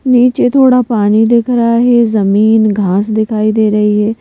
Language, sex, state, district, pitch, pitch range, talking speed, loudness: Hindi, female, Madhya Pradesh, Bhopal, 220 Hz, 210-240 Hz, 185 wpm, -10 LUFS